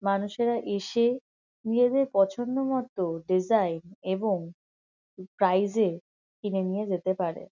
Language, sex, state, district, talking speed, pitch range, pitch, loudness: Bengali, female, West Bengal, Kolkata, 110 wpm, 185-235 Hz, 200 Hz, -27 LUFS